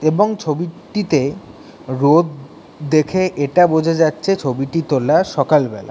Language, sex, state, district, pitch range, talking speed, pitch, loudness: Bengali, male, West Bengal, Kolkata, 140-170 Hz, 100 wpm, 155 Hz, -17 LUFS